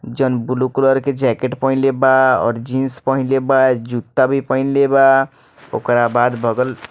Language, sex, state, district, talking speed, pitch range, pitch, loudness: Bhojpuri, male, Bihar, Muzaffarpur, 165 wpm, 120-135 Hz, 130 Hz, -16 LUFS